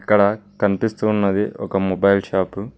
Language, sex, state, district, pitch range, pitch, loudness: Telugu, male, Telangana, Mahabubabad, 100-105 Hz, 100 Hz, -19 LUFS